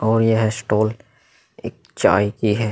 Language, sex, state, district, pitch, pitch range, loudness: Hindi, male, Uttar Pradesh, Muzaffarnagar, 110 Hz, 105-110 Hz, -19 LUFS